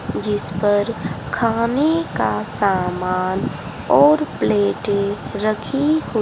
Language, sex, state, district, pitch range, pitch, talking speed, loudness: Hindi, female, Haryana, Charkhi Dadri, 175-235 Hz, 200 Hz, 85 wpm, -19 LUFS